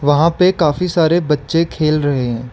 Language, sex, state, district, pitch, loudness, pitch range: Hindi, male, Arunachal Pradesh, Lower Dibang Valley, 155 Hz, -15 LUFS, 145-170 Hz